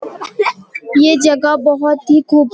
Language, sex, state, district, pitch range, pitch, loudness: Hindi, female, Bihar, Jamui, 295-305 Hz, 295 Hz, -12 LUFS